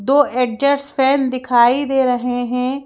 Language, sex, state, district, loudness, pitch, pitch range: Hindi, female, Madhya Pradesh, Bhopal, -16 LUFS, 260 Hz, 245-275 Hz